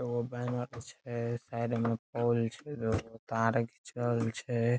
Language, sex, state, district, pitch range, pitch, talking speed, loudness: Maithili, male, Bihar, Saharsa, 115-120 Hz, 120 Hz, 165 wpm, -34 LUFS